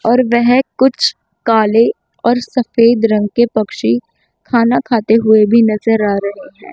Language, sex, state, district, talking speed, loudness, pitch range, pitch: Hindi, female, Chandigarh, Chandigarh, 150 wpm, -13 LUFS, 215-245 Hz, 230 Hz